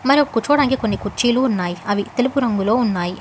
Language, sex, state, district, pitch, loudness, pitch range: Telugu, female, Telangana, Hyderabad, 240 Hz, -18 LUFS, 205-260 Hz